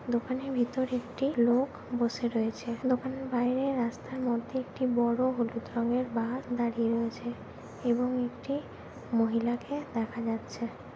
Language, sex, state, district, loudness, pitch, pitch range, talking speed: Bengali, female, West Bengal, Jhargram, -31 LUFS, 240 Hz, 235-255 Hz, 120 wpm